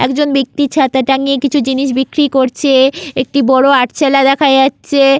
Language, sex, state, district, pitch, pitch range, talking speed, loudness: Bengali, female, West Bengal, Malda, 275 Hz, 265-280 Hz, 150 wpm, -12 LUFS